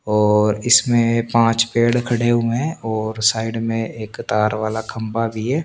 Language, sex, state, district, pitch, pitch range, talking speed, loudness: Hindi, male, Chandigarh, Chandigarh, 115 Hz, 110-120 Hz, 170 wpm, -18 LUFS